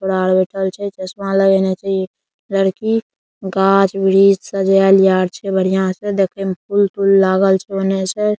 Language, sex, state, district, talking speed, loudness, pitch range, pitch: Maithili, male, Bihar, Saharsa, 120 wpm, -16 LUFS, 190-195 Hz, 195 Hz